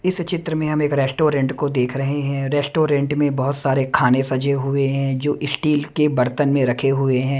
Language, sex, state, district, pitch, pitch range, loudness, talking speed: Hindi, male, Maharashtra, Mumbai Suburban, 140 Hz, 135-150 Hz, -19 LUFS, 210 wpm